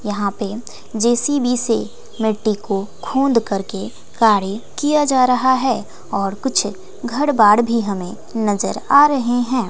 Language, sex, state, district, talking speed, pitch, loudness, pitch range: Hindi, female, Bihar, West Champaran, 140 wpm, 230 Hz, -18 LUFS, 205-260 Hz